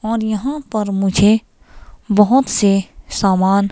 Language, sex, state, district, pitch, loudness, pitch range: Hindi, female, Himachal Pradesh, Shimla, 210 Hz, -16 LUFS, 195-225 Hz